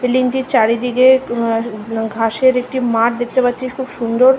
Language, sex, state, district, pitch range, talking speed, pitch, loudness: Bengali, female, West Bengal, North 24 Parganas, 230-255 Hz, 150 wpm, 245 Hz, -16 LUFS